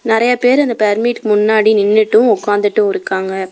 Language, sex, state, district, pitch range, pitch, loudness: Tamil, female, Tamil Nadu, Namakkal, 205-230 Hz, 215 Hz, -13 LUFS